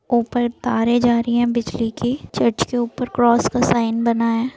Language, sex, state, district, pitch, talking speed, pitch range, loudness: Hindi, female, Bihar, Saran, 235 Hz, 210 wpm, 230-240 Hz, -19 LUFS